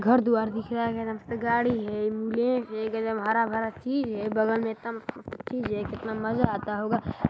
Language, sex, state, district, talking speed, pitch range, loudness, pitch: Hindi, male, Chhattisgarh, Balrampur, 155 wpm, 220-235 Hz, -28 LUFS, 225 Hz